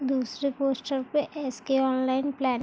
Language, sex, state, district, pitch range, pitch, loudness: Hindi, female, Chhattisgarh, Bilaspur, 260-275 Hz, 270 Hz, -28 LUFS